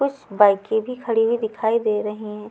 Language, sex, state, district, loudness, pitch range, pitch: Hindi, female, Chhattisgarh, Raipur, -21 LUFS, 210-230 Hz, 220 Hz